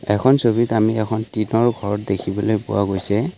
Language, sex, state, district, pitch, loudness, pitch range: Assamese, male, Assam, Kamrup Metropolitan, 110 Hz, -19 LUFS, 100-115 Hz